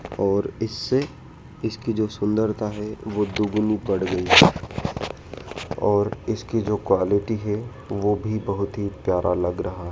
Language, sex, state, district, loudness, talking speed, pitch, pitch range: Hindi, male, Madhya Pradesh, Dhar, -23 LUFS, 140 wpm, 105 Hz, 100-110 Hz